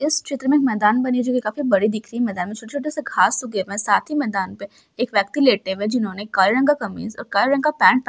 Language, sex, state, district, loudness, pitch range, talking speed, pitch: Hindi, female, Bihar, Sitamarhi, -20 LUFS, 205-275 Hz, 295 wpm, 240 Hz